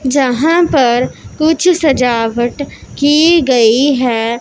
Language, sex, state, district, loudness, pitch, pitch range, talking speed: Hindi, female, Punjab, Pathankot, -12 LUFS, 270 Hz, 240-310 Hz, 95 wpm